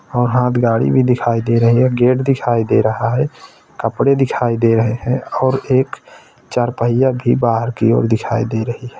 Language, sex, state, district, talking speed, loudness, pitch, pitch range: Hindi, male, Uttar Pradesh, Etah, 195 wpm, -16 LUFS, 120 Hz, 115-130 Hz